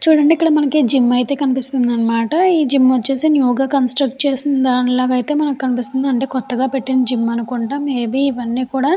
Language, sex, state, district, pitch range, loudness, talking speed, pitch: Telugu, female, Andhra Pradesh, Chittoor, 250-280 Hz, -16 LUFS, 160 wpm, 265 Hz